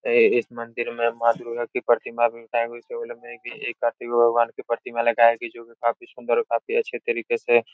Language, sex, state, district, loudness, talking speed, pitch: Hindi, male, Uttar Pradesh, Etah, -23 LUFS, 180 wpm, 120 Hz